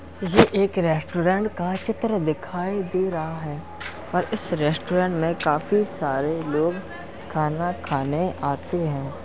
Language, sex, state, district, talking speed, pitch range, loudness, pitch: Hindi, male, Uttar Pradesh, Jalaun, 130 wpm, 155-185 Hz, -24 LUFS, 175 Hz